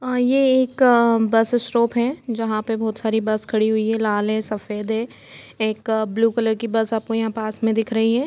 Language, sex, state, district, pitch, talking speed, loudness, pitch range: Hindi, female, Jharkhand, Jamtara, 225 Hz, 225 wpm, -20 LUFS, 220-235 Hz